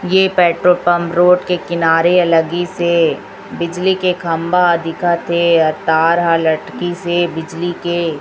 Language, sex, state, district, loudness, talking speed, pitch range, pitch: Hindi, female, Chhattisgarh, Raipur, -14 LUFS, 160 wpm, 165-180 Hz, 175 Hz